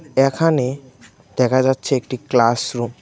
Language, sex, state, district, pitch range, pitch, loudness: Bengali, male, Tripura, West Tripura, 120-135 Hz, 130 Hz, -18 LUFS